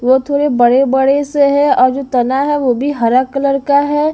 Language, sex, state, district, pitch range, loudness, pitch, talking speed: Hindi, female, Bihar, Patna, 255-285 Hz, -13 LUFS, 275 Hz, 220 wpm